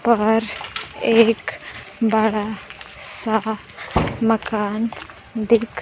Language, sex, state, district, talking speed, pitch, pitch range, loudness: Hindi, female, Bihar, Kaimur, 60 wpm, 220 Hz, 220-230 Hz, -21 LUFS